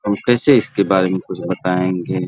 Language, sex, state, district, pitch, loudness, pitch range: Hindi, male, Bihar, Araria, 95 Hz, -17 LUFS, 90-110 Hz